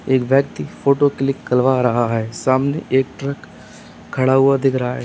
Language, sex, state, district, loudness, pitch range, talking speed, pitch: Hindi, male, Uttar Pradesh, Lalitpur, -18 LUFS, 125-135 Hz, 180 wpm, 130 Hz